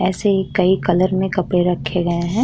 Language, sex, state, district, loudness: Hindi, female, Uttar Pradesh, Muzaffarnagar, -18 LUFS